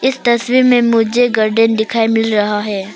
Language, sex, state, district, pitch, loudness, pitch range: Hindi, female, Arunachal Pradesh, Papum Pare, 225 Hz, -13 LUFS, 220-245 Hz